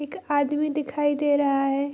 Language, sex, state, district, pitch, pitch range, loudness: Hindi, female, Bihar, Bhagalpur, 290 Hz, 280-295 Hz, -24 LUFS